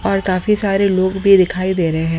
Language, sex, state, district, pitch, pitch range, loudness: Hindi, female, Delhi, New Delhi, 190 Hz, 185-195 Hz, -15 LUFS